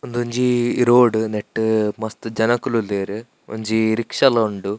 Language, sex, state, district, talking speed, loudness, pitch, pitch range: Tulu, male, Karnataka, Dakshina Kannada, 125 wpm, -19 LUFS, 110 Hz, 110-120 Hz